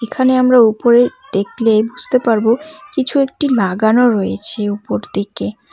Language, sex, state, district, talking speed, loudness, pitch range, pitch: Bengali, female, West Bengal, Cooch Behar, 125 wpm, -15 LUFS, 215-255 Hz, 230 Hz